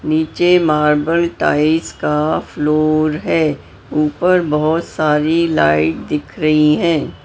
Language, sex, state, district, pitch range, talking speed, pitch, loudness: Hindi, male, Maharashtra, Mumbai Suburban, 150-165 Hz, 105 wpm, 155 Hz, -15 LUFS